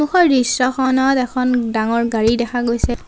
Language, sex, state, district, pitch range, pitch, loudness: Assamese, female, Assam, Sonitpur, 235-260 Hz, 250 Hz, -17 LUFS